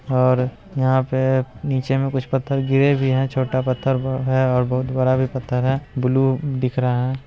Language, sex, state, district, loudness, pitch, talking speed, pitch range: Hindi, male, Bihar, Araria, -20 LUFS, 130 Hz, 180 wpm, 130-135 Hz